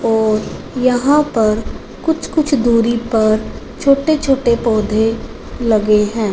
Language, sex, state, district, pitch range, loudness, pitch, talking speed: Hindi, female, Punjab, Fazilka, 220-275 Hz, -15 LUFS, 230 Hz, 115 wpm